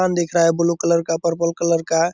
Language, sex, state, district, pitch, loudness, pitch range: Hindi, male, Bihar, Purnia, 170 Hz, -19 LUFS, 165-170 Hz